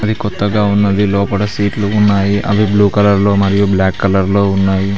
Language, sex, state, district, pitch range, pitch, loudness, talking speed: Telugu, male, Telangana, Mahabubabad, 100-105 Hz, 100 Hz, -13 LUFS, 180 wpm